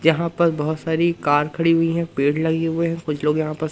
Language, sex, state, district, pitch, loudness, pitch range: Hindi, male, Madhya Pradesh, Umaria, 160 Hz, -20 LUFS, 155-165 Hz